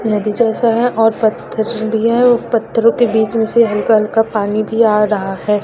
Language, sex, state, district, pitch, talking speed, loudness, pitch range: Hindi, female, Chhattisgarh, Raipur, 225 Hz, 215 wpm, -14 LUFS, 210-230 Hz